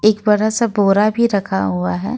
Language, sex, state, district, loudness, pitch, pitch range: Hindi, female, Jharkhand, Ranchi, -16 LUFS, 210 Hz, 195-215 Hz